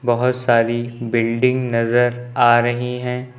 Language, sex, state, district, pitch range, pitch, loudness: Hindi, male, Uttar Pradesh, Lucknow, 120-125 Hz, 120 Hz, -18 LUFS